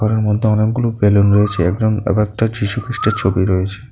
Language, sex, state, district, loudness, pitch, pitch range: Bengali, male, Tripura, South Tripura, -16 LUFS, 105 Hz, 100-110 Hz